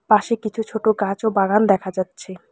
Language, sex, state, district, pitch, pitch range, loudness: Bengali, female, West Bengal, Alipurduar, 210 Hz, 195-220 Hz, -20 LUFS